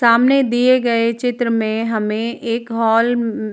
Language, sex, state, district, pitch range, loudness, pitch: Hindi, female, Uttar Pradesh, Jalaun, 225-245 Hz, -17 LUFS, 230 Hz